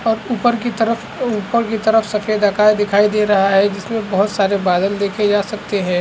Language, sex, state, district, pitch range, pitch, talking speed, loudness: Hindi, male, Bihar, Saharsa, 200-225 Hz, 210 Hz, 220 wpm, -16 LUFS